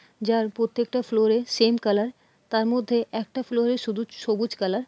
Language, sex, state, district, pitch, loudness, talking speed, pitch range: Bengali, female, West Bengal, Purulia, 230 Hz, -25 LUFS, 185 wpm, 220-240 Hz